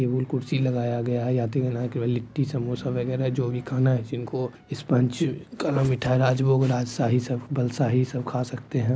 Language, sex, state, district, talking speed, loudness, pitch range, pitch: Hindi, male, Bihar, Supaul, 185 wpm, -25 LUFS, 125-130 Hz, 125 Hz